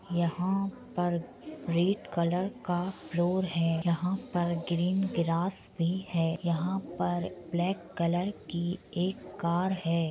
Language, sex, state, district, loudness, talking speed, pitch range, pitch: Hindi, female, Uttar Pradesh, Budaun, -31 LUFS, 125 wpm, 170-190 Hz, 175 Hz